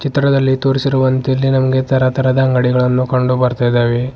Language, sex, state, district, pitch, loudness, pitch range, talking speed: Kannada, male, Karnataka, Bidar, 130 Hz, -14 LUFS, 125-135 Hz, 145 wpm